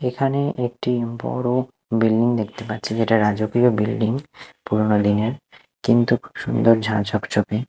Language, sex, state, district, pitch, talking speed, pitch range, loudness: Bengali, male, Odisha, Nuapada, 115 Hz, 115 wpm, 110-125 Hz, -21 LUFS